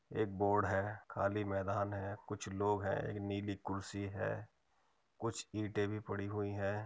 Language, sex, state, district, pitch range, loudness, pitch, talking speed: Hindi, male, Uttar Pradesh, Muzaffarnagar, 100-105 Hz, -39 LUFS, 100 Hz, 165 wpm